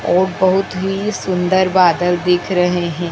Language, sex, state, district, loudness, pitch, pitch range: Hindi, female, Madhya Pradesh, Dhar, -16 LUFS, 180 Hz, 175-190 Hz